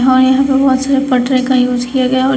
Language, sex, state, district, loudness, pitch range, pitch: Hindi, female, Uttar Pradesh, Shamli, -12 LUFS, 255-265 Hz, 260 Hz